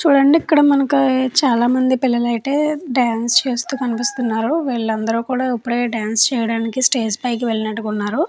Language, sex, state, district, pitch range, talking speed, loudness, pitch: Telugu, female, Andhra Pradesh, Chittoor, 230-270 Hz, 125 wpm, -17 LUFS, 245 Hz